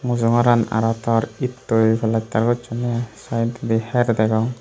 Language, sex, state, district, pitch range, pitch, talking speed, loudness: Chakma, male, Tripura, Unakoti, 110-120 Hz, 115 Hz, 155 wpm, -20 LUFS